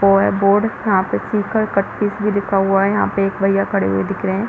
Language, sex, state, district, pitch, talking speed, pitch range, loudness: Hindi, female, Chhattisgarh, Rajnandgaon, 200 Hz, 280 wpm, 195-205 Hz, -17 LUFS